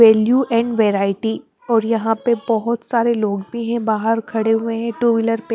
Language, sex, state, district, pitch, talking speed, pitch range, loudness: Hindi, female, Bihar, West Champaran, 230 Hz, 195 wpm, 220-235 Hz, -18 LUFS